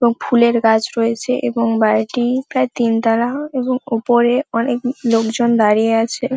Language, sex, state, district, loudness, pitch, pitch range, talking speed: Bengali, female, West Bengal, Paschim Medinipur, -16 LUFS, 235 Hz, 225-250 Hz, 130 wpm